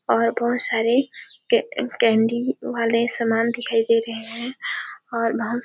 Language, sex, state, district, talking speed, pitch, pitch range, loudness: Hindi, female, Chhattisgarh, Sarguja, 115 wpm, 235 Hz, 230-245 Hz, -22 LUFS